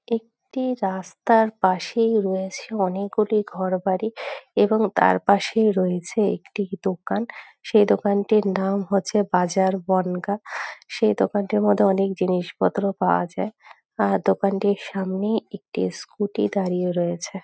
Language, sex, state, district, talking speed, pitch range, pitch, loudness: Bengali, female, West Bengal, North 24 Parganas, 110 wpm, 185-210 Hz, 200 Hz, -22 LUFS